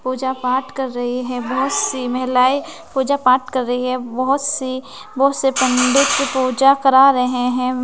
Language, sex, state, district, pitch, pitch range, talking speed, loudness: Hindi, female, Bihar, West Champaran, 260 Hz, 250-275 Hz, 170 wpm, -17 LUFS